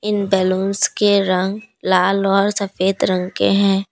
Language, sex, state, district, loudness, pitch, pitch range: Hindi, female, Assam, Kamrup Metropolitan, -17 LUFS, 195 Hz, 185-200 Hz